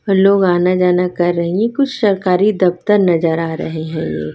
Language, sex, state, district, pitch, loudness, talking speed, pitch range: Hindi, female, Chhattisgarh, Raipur, 180 Hz, -15 LUFS, 195 wpm, 170-200 Hz